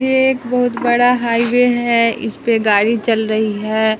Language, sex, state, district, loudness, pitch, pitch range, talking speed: Hindi, female, Bihar, West Champaran, -15 LUFS, 235 Hz, 220-245 Hz, 180 wpm